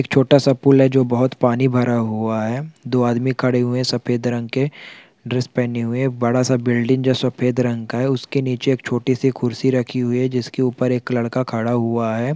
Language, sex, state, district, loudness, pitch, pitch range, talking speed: Hindi, male, Chhattisgarh, Rajnandgaon, -19 LUFS, 125 Hz, 120-130 Hz, 215 wpm